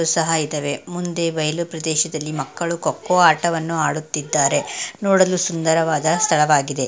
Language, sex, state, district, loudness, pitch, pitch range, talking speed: Kannada, female, Karnataka, Dakshina Kannada, -19 LUFS, 160 Hz, 155-170 Hz, 120 wpm